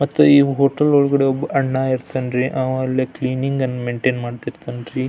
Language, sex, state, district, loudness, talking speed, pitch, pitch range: Kannada, male, Karnataka, Belgaum, -18 LUFS, 165 wpm, 130 Hz, 130-140 Hz